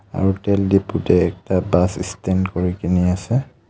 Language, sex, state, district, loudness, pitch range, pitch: Assamese, male, Assam, Kamrup Metropolitan, -19 LUFS, 90-100 Hz, 95 Hz